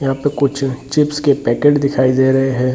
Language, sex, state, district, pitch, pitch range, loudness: Hindi, male, Bihar, Gaya, 135 Hz, 130-145 Hz, -15 LUFS